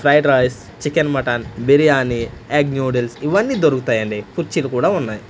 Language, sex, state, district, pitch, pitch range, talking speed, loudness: Telugu, male, Andhra Pradesh, Manyam, 125 Hz, 115-145 Hz, 135 wpm, -17 LUFS